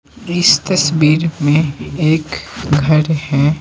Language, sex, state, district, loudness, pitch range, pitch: Hindi, male, Bihar, Patna, -14 LUFS, 150-160 Hz, 155 Hz